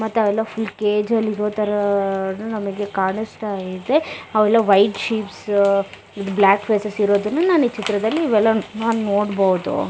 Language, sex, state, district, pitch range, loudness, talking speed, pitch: Kannada, female, Karnataka, Bellary, 200-220 Hz, -19 LUFS, 135 wpm, 210 Hz